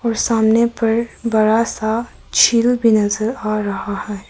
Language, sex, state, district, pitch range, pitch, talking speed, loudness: Hindi, male, Arunachal Pradesh, Papum Pare, 215-230 Hz, 225 Hz, 140 wpm, -17 LUFS